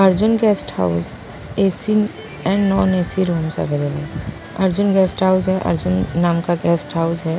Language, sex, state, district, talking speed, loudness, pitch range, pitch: Hindi, female, Punjab, Pathankot, 155 wpm, -18 LUFS, 160-195 Hz, 175 Hz